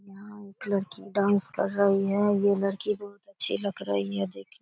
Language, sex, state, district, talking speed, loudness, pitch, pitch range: Hindi, female, Bihar, Samastipur, 205 wpm, -27 LUFS, 200 Hz, 195-205 Hz